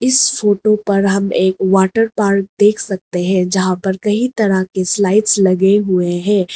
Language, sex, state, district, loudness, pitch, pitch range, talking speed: Hindi, female, Arunachal Pradesh, Lower Dibang Valley, -14 LUFS, 195 Hz, 190-210 Hz, 175 wpm